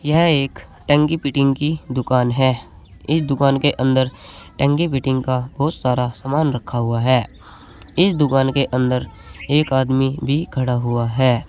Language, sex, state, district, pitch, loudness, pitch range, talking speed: Hindi, male, Uttar Pradesh, Saharanpur, 130 Hz, -18 LUFS, 125-145 Hz, 155 wpm